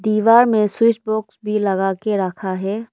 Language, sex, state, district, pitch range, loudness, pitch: Hindi, female, Arunachal Pradesh, Lower Dibang Valley, 195-220 Hz, -18 LUFS, 215 Hz